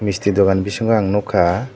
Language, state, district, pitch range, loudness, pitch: Kokborok, Tripura, Dhalai, 95-105 Hz, -17 LUFS, 100 Hz